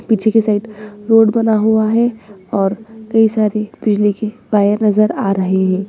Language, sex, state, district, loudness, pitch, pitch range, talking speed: Hindi, female, Bihar, Purnia, -15 LUFS, 215 Hz, 205-220 Hz, 175 wpm